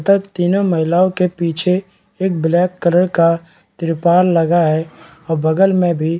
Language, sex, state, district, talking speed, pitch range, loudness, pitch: Hindi, male, Chhattisgarh, Raigarh, 155 wpm, 165-180 Hz, -15 LUFS, 170 Hz